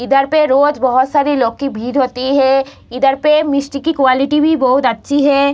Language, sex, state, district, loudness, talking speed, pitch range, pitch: Hindi, female, Bihar, Saharsa, -13 LUFS, 205 wpm, 260-285 Hz, 275 Hz